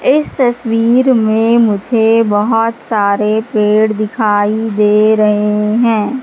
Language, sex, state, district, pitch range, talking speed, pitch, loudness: Hindi, female, Madhya Pradesh, Katni, 210-230 Hz, 105 wpm, 220 Hz, -12 LUFS